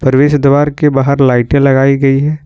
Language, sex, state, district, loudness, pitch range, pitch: Hindi, male, Jharkhand, Ranchi, -10 LUFS, 135-145 Hz, 140 Hz